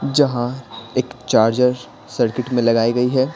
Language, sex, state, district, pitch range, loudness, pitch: Hindi, male, Bihar, Patna, 115-130 Hz, -18 LUFS, 125 Hz